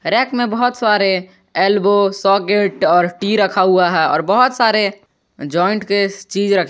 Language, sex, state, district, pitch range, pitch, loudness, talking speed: Hindi, male, Jharkhand, Garhwa, 190-210 Hz, 200 Hz, -15 LUFS, 160 wpm